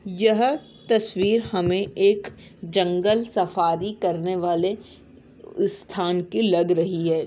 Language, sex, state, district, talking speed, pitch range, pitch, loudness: Hindi, female, Uttarakhand, Tehri Garhwal, 105 wpm, 175-215 Hz, 190 Hz, -23 LUFS